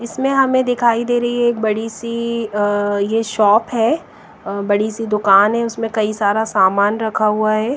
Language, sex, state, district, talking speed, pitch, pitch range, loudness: Hindi, female, Bihar, West Champaran, 195 wpm, 220 Hz, 210-235 Hz, -17 LUFS